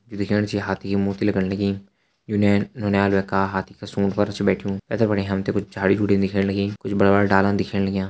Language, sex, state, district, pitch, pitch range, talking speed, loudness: Hindi, male, Uttarakhand, Uttarkashi, 100 Hz, 95-100 Hz, 245 wpm, -22 LUFS